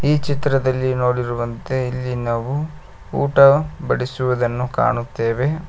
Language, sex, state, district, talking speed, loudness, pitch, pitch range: Kannada, male, Karnataka, Koppal, 85 wpm, -19 LUFS, 130 Hz, 125-140 Hz